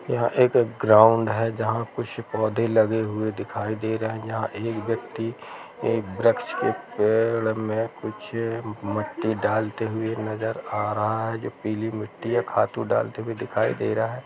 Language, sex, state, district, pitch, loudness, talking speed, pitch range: Hindi, male, Chhattisgarh, Rajnandgaon, 110 Hz, -25 LUFS, 165 wpm, 110-115 Hz